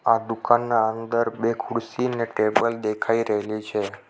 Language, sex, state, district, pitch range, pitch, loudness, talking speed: Gujarati, male, Gujarat, Navsari, 110-115 Hz, 115 Hz, -24 LUFS, 145 wpm